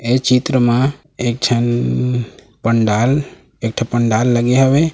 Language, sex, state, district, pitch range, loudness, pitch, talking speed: Chhattisgarhi, male, Chhattisgarh, Raigarh, 115-130 Hz, -16 LUFS, 120 Hz, 135 wpm